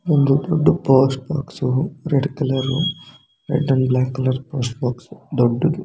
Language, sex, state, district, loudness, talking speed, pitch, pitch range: Kannada, male, Karnataka, Shimoga, -19 LUFS, 145 wpm, 135 Hz, 130-155 Hz